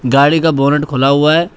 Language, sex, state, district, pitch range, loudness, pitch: Hindi, male, Uttar Pradesh, Shamli, 140-160 Hz, -12 LUFS, 145 Hz